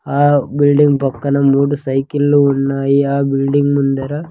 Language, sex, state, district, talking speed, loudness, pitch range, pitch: Telugu, male, Andhra Pradesh, Sri Satya Sai, 125 wpm, -14 LUFS, 135-145 Hz, 140 Hz